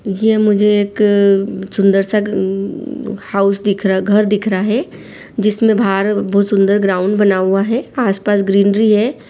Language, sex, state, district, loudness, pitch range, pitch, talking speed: Hindi, female, Jharkhand, Sahebganj, -14 LUFS, 195-210 Hz, 205 Hz, 155 wpm